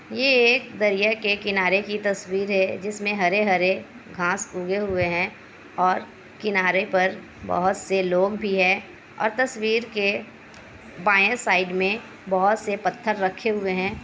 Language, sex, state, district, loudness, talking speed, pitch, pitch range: Hindi, female, Bihar, Kishanganj, -22 LUFS, 145 wpm, 195 Hz, 185-210 Hz